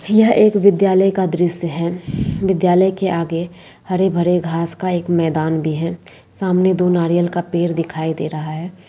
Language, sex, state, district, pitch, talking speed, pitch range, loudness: Hindi, female, Bihar, Purnia, 175 Hz, 170 wpm, 165-185 Hz, -17 LUFS